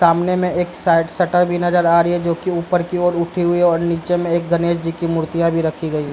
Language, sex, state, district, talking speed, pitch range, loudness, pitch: Hindi, male, Bihar, Darbhanga, 285 wpm, 165-175 Hz, -17 LUFS, 170 Hz